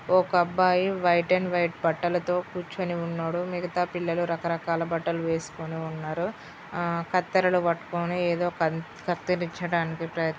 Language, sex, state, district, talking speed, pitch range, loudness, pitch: Telugu, female, Andhra Pradesh, Srikakulam, 135 wpm, 165-180 Hz, -27 LUFS, 175 Hz